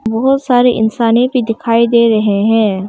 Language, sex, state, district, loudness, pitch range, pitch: Hindi, female, Arunachal Pradesh, Longding, -12 LUFS, 220-245 Hz, 230 Hz